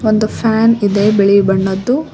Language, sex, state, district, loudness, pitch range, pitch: Kannada, female, Karnataka, Koppal, -13 LUFS, 200-225 Hz, 210 Hz